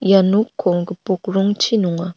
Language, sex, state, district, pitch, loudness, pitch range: Garo, female, Meghalaya, North Garo Hills, 195 Hz, -18 LUFS, 185-205 Hz